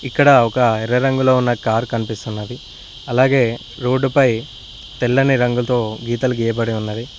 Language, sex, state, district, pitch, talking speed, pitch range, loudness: Telugu, male, Telangana, Mahabubabad, 120 Hz, 115 wpm, 115-130 Hz, -17 LUFS